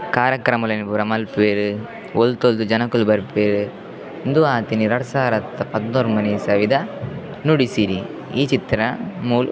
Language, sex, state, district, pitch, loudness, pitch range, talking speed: Tulu, male, Karnataka, Dakshina Kannada, 110 Hz, -19 LUFS, 105-125 Hz, 115 wpm